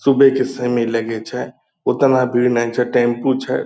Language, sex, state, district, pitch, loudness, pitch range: Angika, male, Bihar, Purnia, 125 Hz, -17 LUFS, 120-130 Hz